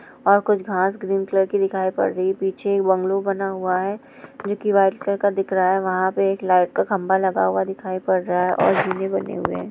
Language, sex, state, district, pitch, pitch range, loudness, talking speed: Hindi, female, Bihar, Sitamarhi, 190 Hz, 185-200 Hz, -21 LUFS, 255 wpm